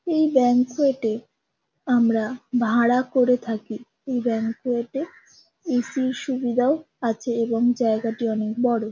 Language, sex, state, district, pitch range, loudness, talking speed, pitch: Bengali, female, West Bengal, Kolkata, 230-260 Hz, -23 LUFS, 130 wpm, 245 Hz